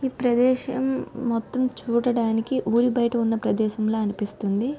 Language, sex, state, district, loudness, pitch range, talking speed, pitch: Telugu, female, Andhra Pradesh, Visakhapatnam, -24 LUFS, 220-255 Hz, 125 wpm, 235 Hz